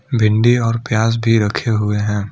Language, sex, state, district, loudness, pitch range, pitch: Hindi, male, Assam, Kamrup Metropolitan, -16 LUFS, 105-115 Hz, 110 Hz